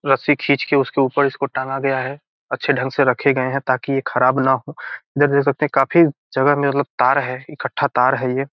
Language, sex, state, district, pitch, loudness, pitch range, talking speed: Hindi, male, Bihar, Gopalganj, 135 Hz, -18 LUFS, 130-140 Hz, 225 wpm